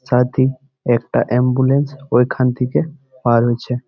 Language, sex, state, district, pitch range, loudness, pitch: Bengali, male, West Bengal, Malda, 125-135 Hz, -17 LUFS, 125 Hz